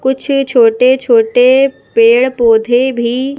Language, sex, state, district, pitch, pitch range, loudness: Hindi, female, Madhya Pradesh, Bhopal, 250 Hz, 235-265 Hz, -10 LUFS